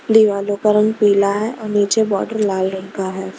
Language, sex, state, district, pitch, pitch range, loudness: Hindi, female, Maharashtra, Mumbai Suburban, 205 Hz, 195-215 Hz, -17 LUFS